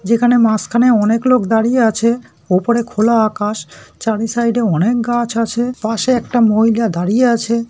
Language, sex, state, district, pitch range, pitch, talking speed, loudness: Bengali, male, West Bengal, North 24 Parganas, 220-240 Hz, 230 Hz, 155 wpm, -15 LUFS